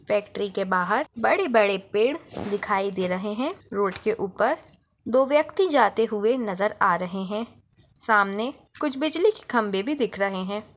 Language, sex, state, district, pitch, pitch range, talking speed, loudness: Hindi, female, Chhattisgarh, Bastar, 215 Hz, 200-265 Hz, 160 wpm, -24 LUFS